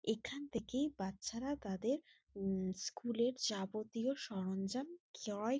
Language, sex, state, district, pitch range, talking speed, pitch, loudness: Bengali, female, West Bengal, Jalpaiguri, 195-260 Hz, 105 wpm, 230 Hz, -41 LUFS